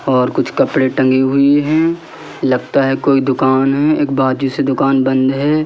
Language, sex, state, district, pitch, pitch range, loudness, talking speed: Hindi, male, Madhya Pradesh, Katni, 135 Hz, 130-145 Hz, -14 LUFS, 180 wpm